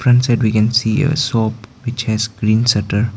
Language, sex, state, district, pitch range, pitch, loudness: English, male, Arunachal Pradesh, Lower Dibang Valley, 110-125 Hz, 115 Hz, -16 LUFS